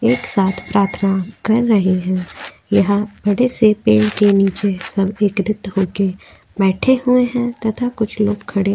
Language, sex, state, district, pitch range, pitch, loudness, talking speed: Hindi, female, Uttar Pradesh, Jyotiba Phule Nagar, 195-225 Hz, 205 Hz, -17 LUFS, 160 wpm